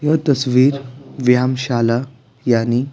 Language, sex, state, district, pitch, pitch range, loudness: Hindi, male, Bihar, Patna, 130 Hz, 125-135 Hz, -17 LUFS